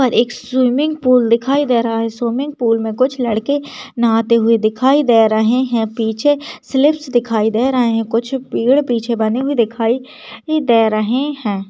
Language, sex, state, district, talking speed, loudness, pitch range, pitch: Hindi, female, Chhattisgarh, Jashpur, 170 wpm, -15 LUFS, 225-265 Hz, 240 Hz